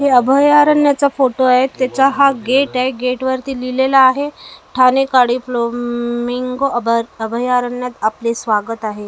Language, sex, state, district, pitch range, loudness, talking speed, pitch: Marathi, female, Maharashtra, Mumbai Suburban, 240-270 Hz, -15 LUFS, 140 wpm, 255 Hz